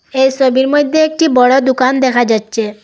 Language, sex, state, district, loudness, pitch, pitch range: Bengali, female, Assam, Hailakandi, -12 LUFS, 260 Hz, 240-270 Hz